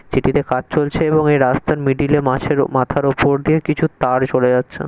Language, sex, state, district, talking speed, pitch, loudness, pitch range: Bengali, male, West Bengal, Kolkata, 185 wpm, 140 Hz, -16 LUFS, 130-155 Hz